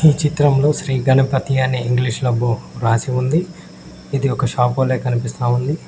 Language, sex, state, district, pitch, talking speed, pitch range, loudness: Telugu, male, Telangana, Mahabubabad, 130 Hz, 165 wpm, 125-140 Hz, -18 LUFS